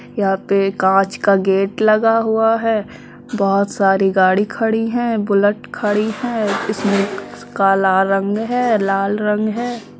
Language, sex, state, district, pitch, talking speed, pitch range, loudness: Hindi, female, Uttar Pradesh, Budaun, 205 Hz, 140 wpm, 195-225 Hz, -17 LUFS